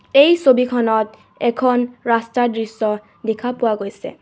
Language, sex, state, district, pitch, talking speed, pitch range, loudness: Assamese, female, Assam, Kamrup Metropolitan, 235 Hz, 115 wpm, 220-245 Hz, -18 LUFS